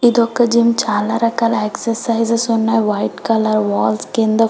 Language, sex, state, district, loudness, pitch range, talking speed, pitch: Telugu, female, Telangana, Karimnagar, -16 LUFS, 215-230 Hz, 160 wpm, 225 Hz